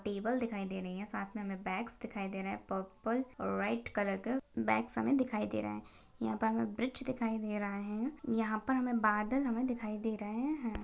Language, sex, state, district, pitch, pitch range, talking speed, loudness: Hindi, female, Bihar, Gaya, 215 Hz, 195-235 Hz, 220 wpm, -36 LUFS